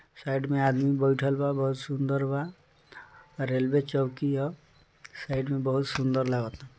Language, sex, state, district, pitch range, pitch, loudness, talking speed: Bhojpuri, male, Bihar, East Champaran, 135-140 Hz, 135 Hz, -28 LUFS, 140 wpm